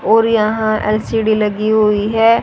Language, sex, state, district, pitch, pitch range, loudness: Hindi, female, Haryana, Rohtak, 215 Hz, 215-225 Hz, -14 LUFS